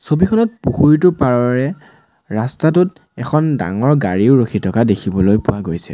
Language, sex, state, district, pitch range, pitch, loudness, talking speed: Assamese, male, Assam, Sonitpur, 105-155 Hz, 130 Hz, -15 LUFS, 120 wpm